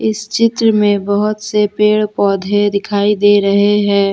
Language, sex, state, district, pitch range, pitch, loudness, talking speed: Hindi, female, Jharkhand, Deoghar, 200-210 Hz, 205 Hz, -13 LUFS, 160 wpm